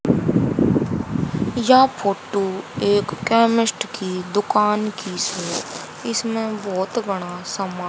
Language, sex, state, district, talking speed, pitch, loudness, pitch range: Hindi, female, Haryana, Rohtak, 85 wpm, 205 Hz, -21 LUFS, 190-225 Hz